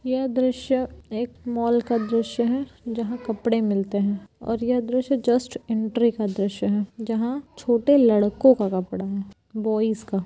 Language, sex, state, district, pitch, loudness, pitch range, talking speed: Hindi, female, Uttar Pradesh, Varanasi, 230 Hz, -23 LUFS, 210-245 Hz, 150 wpm